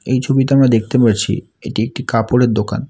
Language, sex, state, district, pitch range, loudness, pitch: Bengali, male, West Bengal, Alipurduar, 110-130 Hz, -15 LUFS, 120 Hz